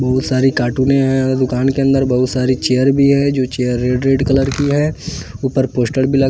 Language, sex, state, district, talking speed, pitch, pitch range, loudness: Hindi, male, Bihar, West Champaran, 220 wpm, 130 Hz, 130-135 Hz, -15 LUFS